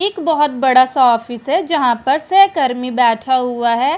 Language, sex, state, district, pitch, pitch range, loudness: Hindi, female, Uttarakhand, Uttarkashi, 260 Hz, 245-310 Hz, -14 LUFS